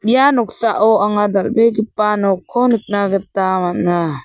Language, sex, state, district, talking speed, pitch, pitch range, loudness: Garo, female, Meghalaya, South Garo Hills, 115 wpm, 205 Hz, 195-225 Hz, -15 LUFS